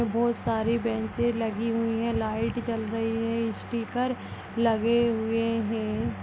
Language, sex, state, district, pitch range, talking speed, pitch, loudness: Kumaoni, female, Uttarakhand, Tehri Garhwal, 225-235 Hz, 135 wpm, 230 Hz, -28 LUFS